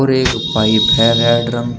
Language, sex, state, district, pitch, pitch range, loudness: Hindi, male, Uttar Pradesh, Shamli, 120 Hz, 115-120 Hz, -13 LUFS